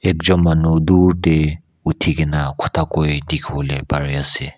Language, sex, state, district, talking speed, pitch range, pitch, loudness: Nagamese, male, Nagaland, Kohima, 145 wpm, 75-85 Hz, 80 Hz, -17 LUFS